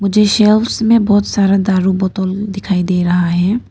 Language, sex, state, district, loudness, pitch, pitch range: Hindi, female, Arunachal Pradesh, Papum Pare, -13 LUFS, 195 Hz, 185-210 Hz